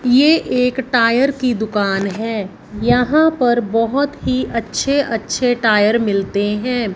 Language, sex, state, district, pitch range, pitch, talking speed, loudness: Hindi, female, Punjab, Fazilka, 215-255 Hz, 235 Hz, 130 wpm, -16 LUFS